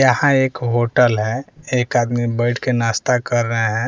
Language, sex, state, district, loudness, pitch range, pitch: Hindi, male, Bihar, West Champaran, -18 LUFS, 115-130 Hz, 120 Hz